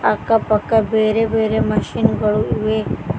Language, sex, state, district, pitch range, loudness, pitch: Kannada, female, Karnataka, Koppal, 215-225 Hz, -17 LUFS, 220 Hz